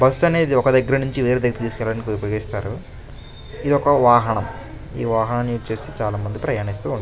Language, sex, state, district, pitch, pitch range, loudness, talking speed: Telugu, male, Andhra Pradesh, Chittoor, 115 Hz, 110-130 Hz, -20 LUFS, 155 wpm